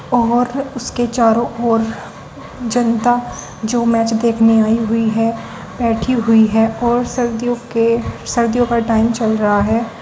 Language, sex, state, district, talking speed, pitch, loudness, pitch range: Hindi, female, Uttar Pradesh, Saharanpur, 140 wpm, 230 Hz, -16 LUFS, 225-240 Hz